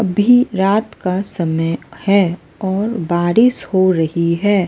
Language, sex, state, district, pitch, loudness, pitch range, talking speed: Hindi, female, Chhattisgarh, Raipur, 190 Hz, -16 LUFS, 170-205 Hz, 130 wpm